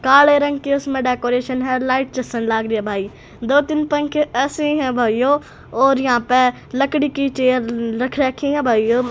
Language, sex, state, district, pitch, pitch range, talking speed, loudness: Hindi, female, Haryana, Rohtak, 260 Hz, 245-285 Hz, 185 wpm, -18 LUFS